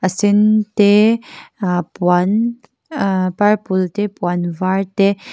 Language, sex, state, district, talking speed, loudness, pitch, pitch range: Mizo, female, Mizoram, Aizawl, 125 wpm, -16 LUFS, 195 Hz, 185-210 Hz